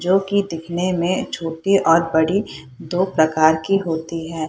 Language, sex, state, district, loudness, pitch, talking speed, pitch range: Hindi, female, Bihar, Purnia, -19 LUFS, 170 Hz, 160 wpm, 160-190 Hz